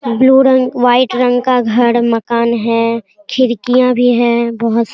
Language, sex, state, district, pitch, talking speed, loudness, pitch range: Hindi, female, Bihar, Araria, 245 Hz, 160 wpm, -12 LUFS, 235-250 Hz